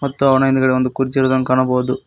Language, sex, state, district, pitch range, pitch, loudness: Kannada, male, Karnataka, Koppal, 130-135 Hz, 130 Hz, -16 LUFS